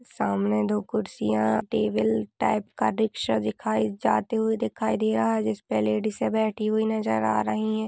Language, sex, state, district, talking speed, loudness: Hindi, female, Uttar Pradesh, Budaun, 175 wpm, -25 LUFS